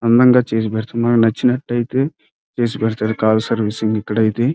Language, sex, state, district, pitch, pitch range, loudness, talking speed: Telugu, male, Andhra Pradesh, Krishna, 115 Hz, 110-120 Hz, -17 LUFS, 120 wpm